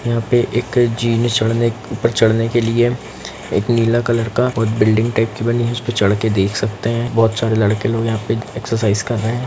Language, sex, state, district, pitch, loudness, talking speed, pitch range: Hindi, male, Bihar, Lakhisarai, 115 Hz, -17 LUFS, 220 wpm, 110-120 Hz